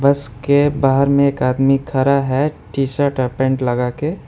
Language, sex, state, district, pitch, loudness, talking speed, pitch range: Hindi, male, West Bengal, Alipurduar, 135 Hz, -17 LUFS, 170 wpm, 130-140 Hz